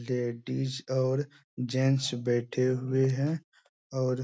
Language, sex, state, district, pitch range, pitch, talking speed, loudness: Hindi, male, Bihar, Bhagalpur, 125-135 Hz, 130 Hz, 115 wpm, -30 LUFS